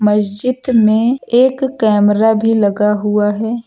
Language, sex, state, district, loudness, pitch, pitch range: Hindi, female, Uttar Pradesh, Lucknow, -13 LUFS, 220 Hz, 210-245 Hz